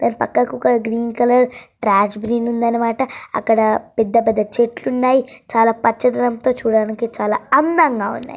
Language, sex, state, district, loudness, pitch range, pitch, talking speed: Telugu, female, Andhra Pradesh, Srikakulam, -17 LUFS, 220-245 Hz, 230 Hz, 115 wpm